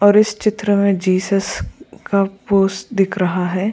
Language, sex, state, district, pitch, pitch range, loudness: Hindi, female, Goa, North and South Goa, 195 Hz, 190-205 Hz, -17 LUFS